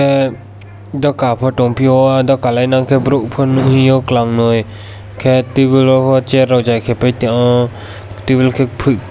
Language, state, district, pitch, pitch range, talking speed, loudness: Kokborok, Tripura, West Tripura, 130 Hz, 115-130 Hz, 160 wpm, -13 LUFS